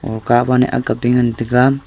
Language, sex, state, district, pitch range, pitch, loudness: Wancho, male, Arunachal Pradesh, Longding, 115-125 Hz, 120 Hz, -15 LUFS